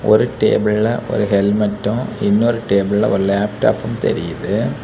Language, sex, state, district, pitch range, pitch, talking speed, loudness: Tamil, male, Tamil Nadu, Kanyakumari, 100-115 Hz, 105 Hz, 110 wpm, -17 LUFS